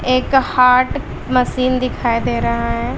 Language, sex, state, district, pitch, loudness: Hindi, female, Bihar, West Champaran, 250 Hz, -16 LUFS